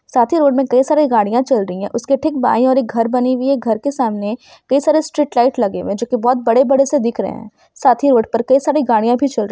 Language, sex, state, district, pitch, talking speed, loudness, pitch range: Hindi, female, Bihar, Sitamarhi, 250 Hz, 295 wpm, -15 LUFS, 230-275 Hz